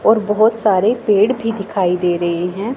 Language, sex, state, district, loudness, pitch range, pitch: Hindi, female, Punjab, Pathankot, -16 LUFS, 180-225 Hz, 210 Hz